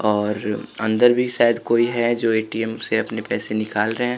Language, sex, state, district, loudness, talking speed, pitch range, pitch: Hindi, male, Bihar, West Champaran, -20 LUFS, 200 wpm, 110-120 Hz, 110 Hz